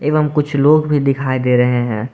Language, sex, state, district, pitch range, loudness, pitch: Hindi, male, Jharkhand, Garhwa, 125-150 Hz, -15 LUFS, 140 Hz